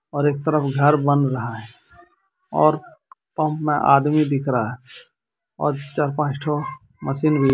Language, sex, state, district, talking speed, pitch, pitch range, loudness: Hindi, male, Jharkhand, Deoghar, 160 wpm, 145 Hz, 130-150 Hz, -21 LUFS